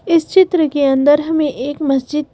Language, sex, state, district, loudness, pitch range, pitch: Hindi, female, Madhya Pradesh, Bhopal, -14 LUFS, 280-320 Hz, 300 Hz